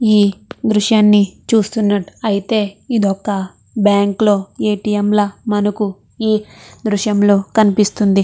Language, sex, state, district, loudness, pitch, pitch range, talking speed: Telugu, female, Andhra Pradesh, Chittoor, -16 LUFS, 210 Hz, 200-215 Hz, 100 wpm